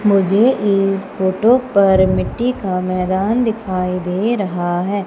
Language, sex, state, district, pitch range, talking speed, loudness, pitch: Hindi, female, Madhya Pradesh, Umaria, 185-220 Hz, 130 wpm, -16 LUFS, 195 Hz